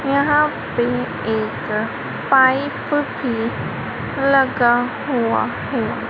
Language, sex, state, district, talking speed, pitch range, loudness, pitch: Hindi, female, Madhya Pradesh, Dhar, 70 wpm, 240-280 Hz, -19 LUFS, 265 Hz